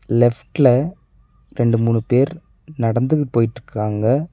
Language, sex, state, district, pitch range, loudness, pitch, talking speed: Tamil, male, Tamil Nadu, Nilgiris, 115-140 Hz, -18 LUFS, 120 Hz, 85 wpm